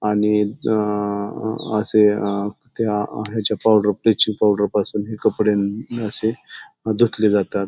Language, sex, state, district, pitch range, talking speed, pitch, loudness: Marathi, male, Maharashtra, Pune, 105-110 Hz, 115 wpm, 105 Hz, -19 LUFS